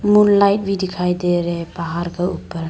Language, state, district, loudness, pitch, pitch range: Hindi, Arunachal Pradesh, Lower Dibang Valley, -18 LUFS, 180 Hz, 170-200 Hz